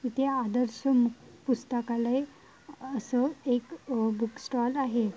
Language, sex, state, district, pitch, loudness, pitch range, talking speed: Marathi, female, Maharashtra, Dhule, 250 Hz, -30 LUFS, 235-270 Hz, 105 wpm